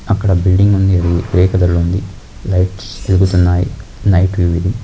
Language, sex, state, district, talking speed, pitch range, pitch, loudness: Telugu, male, Andhra Pradesh, Krishna, 135 wpm, 90-95 Hz, 95 Hz, -14 LUFS